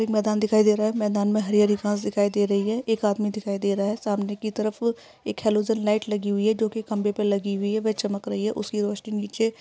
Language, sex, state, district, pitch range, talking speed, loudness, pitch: Hindi, female, Uttarakhand, Uttarkashi, 205-215 Hz, 275 wpm, -24 LUFS, 210 Hz